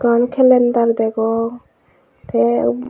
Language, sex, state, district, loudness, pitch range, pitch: Chakma, female, Tripura, Unakoti, -16 LUFS, 150-240 Hz, 230 Hz